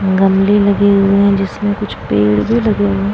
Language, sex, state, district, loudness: Hindi, female, Bihar, Vaishali, -13 LUFS